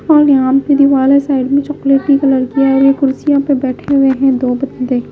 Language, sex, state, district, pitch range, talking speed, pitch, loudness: Hindi, female, Himachal Pradesh, Shimla, 265-280 Hz, 220 wpm, 275 Hz, -12 LUFS